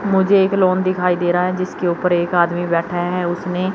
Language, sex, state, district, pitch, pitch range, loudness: Hindi, female, Chandigarh, Chandigarh, 180 Hz, 175-185 Hz, -17 LUFS